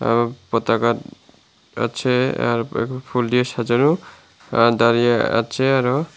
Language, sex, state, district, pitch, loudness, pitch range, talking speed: Bengali, male, Tripura, Unakoti, 120 Hz, -19 LUFS, 115-130 Hz, 105 wpm